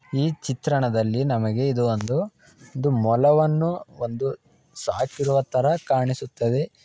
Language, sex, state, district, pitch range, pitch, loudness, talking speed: Kannada, male, Karnataka, Dharwad, 125-145 Hz, 135 Hz, -23 LUFS, 95 wpm